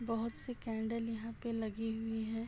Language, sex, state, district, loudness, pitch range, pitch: Hindi, male, Uttar Pradesh, Gorakhpur, -40 LUFS, 225-230 Hz, 225 Hz